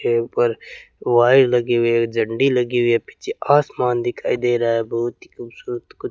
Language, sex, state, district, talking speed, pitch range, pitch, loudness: Hindi, male, Rajasthan, Bikaner, 205 wpm, 115-130 Hz, 120 Hz, -19 LUFS